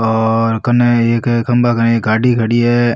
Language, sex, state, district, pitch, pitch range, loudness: Rajasthani, male, Rajasthan, Nagaur, 115 Hz, 115-120 Hz, -13 LUFS